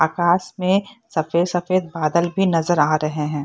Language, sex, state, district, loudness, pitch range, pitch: Hindi, female, Bihar, Purnia, -20 LUFS, 160-185 Hz, 175 Hz